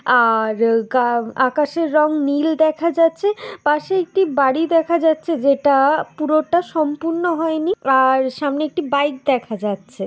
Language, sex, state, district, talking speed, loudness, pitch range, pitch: Bengali, female, West Bengal, Dakshin Dinajpur, 130 wpm, -18 LUFS, 260-330 Hz, 300 Hz